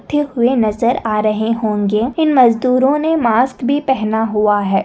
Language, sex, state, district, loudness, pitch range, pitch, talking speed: Hindi, female, Maharashtra, Nagpur, -15 LUFS, 215-265 Hz, 235 Hz, 160 wpm